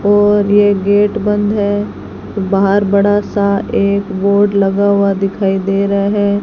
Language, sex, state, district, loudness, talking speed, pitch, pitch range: Hindi, female, Rajasthan, Bikaner, -13 LUFS, 150 wpm, 200 Hz, 200-205 Hz